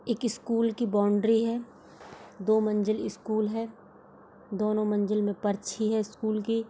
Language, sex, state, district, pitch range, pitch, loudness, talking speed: Hindi, female, Uttar Pradesh, Budaun, 210-225 Hz, 215 Hz, -28 LUFS, 150 wpm